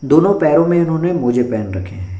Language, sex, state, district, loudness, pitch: Hindi, male, Bihar, Bhagalpur, -15 LUFS, 125 Hz